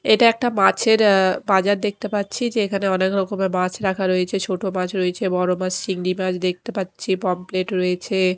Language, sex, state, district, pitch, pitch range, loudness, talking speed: Bengali, female, Odisha, Khordha, 190 Hz, 185-205 Hz, -20 LUFS, 170 wpm